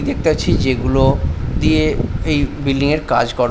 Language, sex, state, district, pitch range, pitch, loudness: Bengali, male, West Bengal, Paschim Medinipur, 125-140 Hz, 135 Hz, -17 LUFS